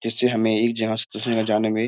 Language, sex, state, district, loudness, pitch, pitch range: Hindi, male, Bihar, Jamui, -22 LUFS, 110 Hz, 110-115 Hz